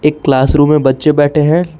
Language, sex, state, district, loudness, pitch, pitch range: Hindi, male, Jharkhand, Palamu, -11 LUFS, 150 Hz, 145-150 Hz